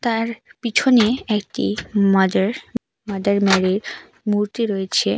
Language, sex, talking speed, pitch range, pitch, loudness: Bengali, female, 95 wpm, 195-230 Hz, 205 Hz, -19 LUFS